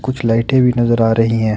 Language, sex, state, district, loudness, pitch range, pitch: Hindi, male, Jharkhand, Ranchi, -14 LUFS, 115-125 Hz, 115 Hz